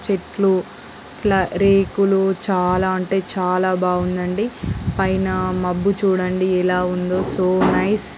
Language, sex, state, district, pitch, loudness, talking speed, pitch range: Telugu, female, Andhra Pradesh, Guntur, 185 Hz, -19 LUFS, 90 wpm, 180-195 Hz